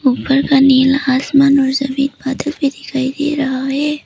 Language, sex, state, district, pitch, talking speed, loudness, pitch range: Hindi, female, Arunachal Pradesh, Papum Pare, 275 Hz, 175 wpm, -14 LUFS, 265-280 Hz